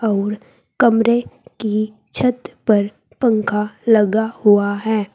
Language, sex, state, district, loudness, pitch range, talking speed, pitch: Hindi, female, Uttar Pradesh, Saharanpur, -18 LUFS, 210-230 Hz, 105 wpm, 215 Hz